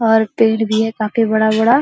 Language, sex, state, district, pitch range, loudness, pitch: Hindi, female, Bihar, Araria, 220-225 Hz, -15 LUFS, 220 Hz